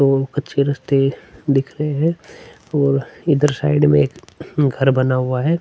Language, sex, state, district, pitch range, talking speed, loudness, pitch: Hindi, male, Chhattisgarh, Sukma, 135-150 Hz, 160 wpm, -18 LUFS, 140 Hz